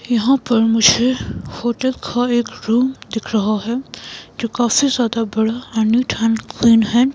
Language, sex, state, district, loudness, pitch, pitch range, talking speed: Hindi, female, Himachal Pradesh, Shimla, -17 LUFS, 235 Hz, 225-250 Hz, 160 wpm